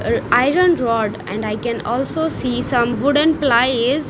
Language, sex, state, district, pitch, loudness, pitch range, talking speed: English, female, Punjab, Kapurthala, 245 Hz, -17 LUFS, 235-285 Hz, 145 wpm